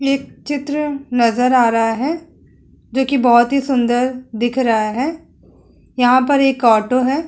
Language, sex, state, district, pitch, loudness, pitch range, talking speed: Hindi, female, Uttar Pradesh, Muzaffarnagar, 255 Hz, -16 LUFS, 240-275 Hz, 140 wpm